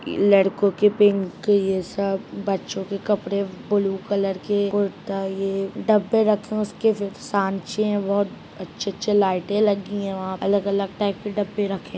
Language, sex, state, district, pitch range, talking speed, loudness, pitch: Hindi, male, Bihar, Madhepura, 195-205 Hz, 160 wpm, -22 LUFS, 200 Hz